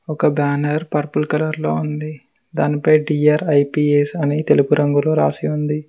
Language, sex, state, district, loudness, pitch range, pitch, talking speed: Telugu, male, Telangana, Mahabubabad, -18 LUFS, 145-155 Hz, 150 Hz, 130 wpm